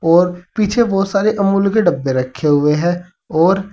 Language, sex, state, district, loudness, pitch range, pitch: Hindi, male, Uttar Pradesh, Saharanpur, -15 LUFS, 155-195 Hz, 180 Hz